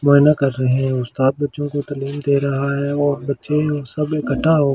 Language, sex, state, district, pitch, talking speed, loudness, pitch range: Hindi, male, Delhi, New Delhi, 140 Hz, 215 wpm, -19 LUFS, 135-145 Hz